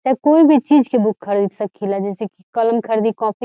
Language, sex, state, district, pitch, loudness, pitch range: Bhojpuri, female, Bihar, Saran, 220 Hz, -16 LUFS, 200-250 Hz